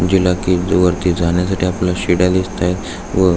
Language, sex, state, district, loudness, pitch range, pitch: Marathi, male, Maharashtra, Aurangabad, -16 LUFS, 90-95 Hz, 90 Hz